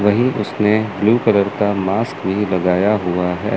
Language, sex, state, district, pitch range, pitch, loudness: Hindi, male, Chandigarh, Chandigarh, 95-105 Hz, 105 Hz, -17 LUFS